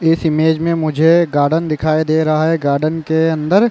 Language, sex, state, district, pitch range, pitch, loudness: Hindi, male, Chhattisgarh, Raigarh, 155-165 Hz, 160 Hz, -15 LUFS